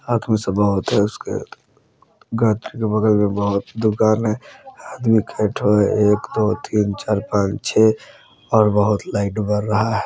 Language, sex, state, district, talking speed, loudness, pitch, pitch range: Bajjika, male, Bihar, Vaishali, 155 wpm, -19 LUFS, 105 Hz, 105-110 Hz